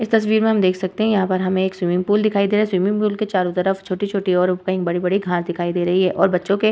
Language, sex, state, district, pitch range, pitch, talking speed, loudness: Hindi, female, Bihar, Vaishali, 180-205 Hz, 190 Hz, 305 wpm, -19 LUFS